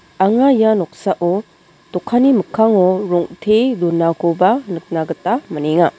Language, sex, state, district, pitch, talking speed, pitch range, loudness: Garo, female, Meghalaya, West Garo Hills, 180 Hz, 100 wpm, 170-220 Hz, -16 LUFS